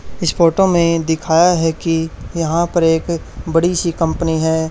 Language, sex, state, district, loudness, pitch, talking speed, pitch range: Hindi, male, Haryana, Charkhi Dadri, -16 LUFS, 165 Hz, 165 wpm, 160-170 Hz